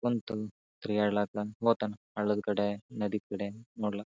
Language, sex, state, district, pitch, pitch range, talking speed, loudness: Kannada, male, Karnataka, Bijapur, 105 Hz, 105-110 Hz, 115 wpm, -33 LUFS